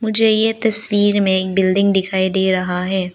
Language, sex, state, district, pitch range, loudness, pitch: Hindi, female, Arunachal Pradesh, Lower Dibang Valley, 190-215 Hz, -16 LUFS, 195 Hz